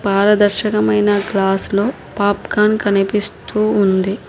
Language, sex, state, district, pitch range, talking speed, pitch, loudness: Telugu, female, Telangana, Hyderabad, 195-210 Hz, 70 wpm, 205 Hz, -16 LUFS